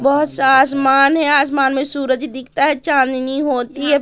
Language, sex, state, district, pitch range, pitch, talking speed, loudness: Hindi, female, Madhya Pradesh, Katni, 265-290 Hz, 275 Hz, 180 wpm, -15 LUFS